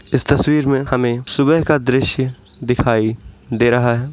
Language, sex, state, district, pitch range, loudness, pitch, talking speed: Hindi, male, Uttar Pradesh, Muzaffarnagar, 120-140 Hz, -16 LUFS, 125 Hz, 160 wpm